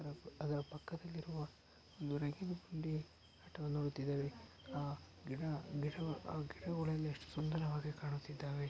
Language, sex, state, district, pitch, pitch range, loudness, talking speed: Kannada, male, Karnataka, Mysore, 150 Hz, 145-155 Hz, -44 LUFS, 110 wpm